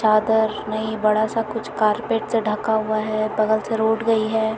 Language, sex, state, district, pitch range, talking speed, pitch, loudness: Hindi, female, Chhattisgarh, Bilaspur, 215-220 Hz, 195 wpm, 220 Hz, -21 LUFS